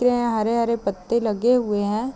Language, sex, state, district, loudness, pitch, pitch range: Hindi, female, Chhattisgarh, Raigarh, -22 LUFS, 230 Hz, 215-240 Hz